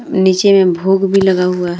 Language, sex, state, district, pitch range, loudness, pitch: Hindi, female, Uttar Pradesh, Hamirpur, 180-195 Hz, -12 LUFS, 190 Hz